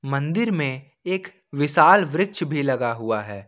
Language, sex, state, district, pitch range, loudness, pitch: Hindi, male, Jharkhand, Ranchi, 130-185 Hz, -21 LUFS, 145 Hz